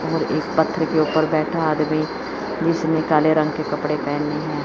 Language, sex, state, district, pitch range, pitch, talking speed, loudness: Hindi, female, Chandigarh, Chandigarh, 150-160 Hz, 155 Hz, 180 wpm, -20 LUFS